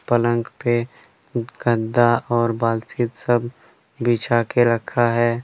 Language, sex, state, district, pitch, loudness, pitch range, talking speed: Hindi, male, Jharkhand, Deoghar, 120 Hz, -20 LUFS, 115-120 Hz, 110 wpm